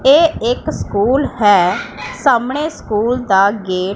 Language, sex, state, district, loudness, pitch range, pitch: Hindi, female, Punjab, Pathankot, -15 LUFS, 200-265 Hz, 225 Hz